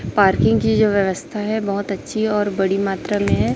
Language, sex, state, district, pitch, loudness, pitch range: Hindi, female, Chhattisgarh, Raipur, 200 Hz, -19 LUFS, 185-210 Hz